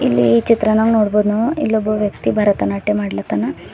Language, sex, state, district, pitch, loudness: Kannada, female, Karnataka, Bidar, 210 Hz, -16 LUFS